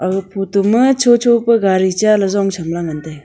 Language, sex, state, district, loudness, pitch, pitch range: Wancho, female, Arunachal Pradesh, Longding, -14 LUFS, 195 Hz, 185-230 Hz